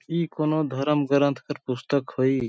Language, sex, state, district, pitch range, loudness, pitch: Sadri, male, Chhattisgarh, Jashpur, 130-155 Hz, -25 LUFS, 140 Hz